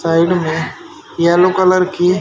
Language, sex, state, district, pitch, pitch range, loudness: Hindi, male, Haryana, Jhajjar, 180 Hz, 170-185 Hz, -14 LUFS